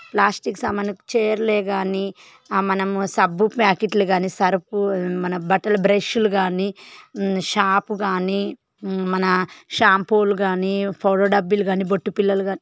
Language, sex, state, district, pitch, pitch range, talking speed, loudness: Telugu, female, Telangana, Karimnagar, 195 Hz, 190-205 Hz, 130 wpm, -20 LUFS